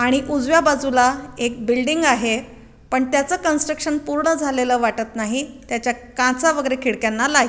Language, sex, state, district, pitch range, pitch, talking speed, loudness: Marathi, female, Maharashtra, Aurangabad, 240-290 Hz, 260 Hz, 150 wpm, -19 LUFS